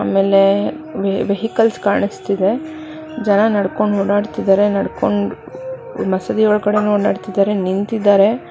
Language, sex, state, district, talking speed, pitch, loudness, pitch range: Kannada, female, Karnataka, Bangalore, 70 wpm, 205 Hz, -16 LUFS, 195-225 Hz